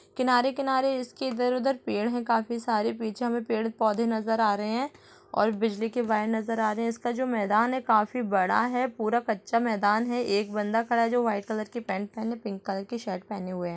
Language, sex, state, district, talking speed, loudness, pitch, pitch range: Hindi, female, Chhattisgarh, Rajnandgaon, 225 wpm, -27 LUFS, 225 Hz, 215-240 Hz